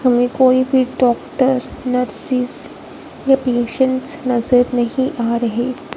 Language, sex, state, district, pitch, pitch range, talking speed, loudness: Hindi, female, Punjab, Fazilka, 255 Hz, 245-260 Hz, 110 wpm, -17 LUFS